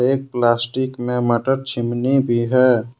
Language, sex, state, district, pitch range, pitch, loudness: Hindi, male, Jharkhand, Ranchi, 120-130 Hz, 125 Hz, -18 LUFS